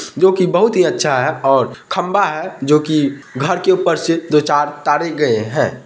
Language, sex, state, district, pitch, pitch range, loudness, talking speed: Hindi, male, Bihar, Madhepura, 150 Hz, 145-180 Hz, -15 LUFS, 165 wpm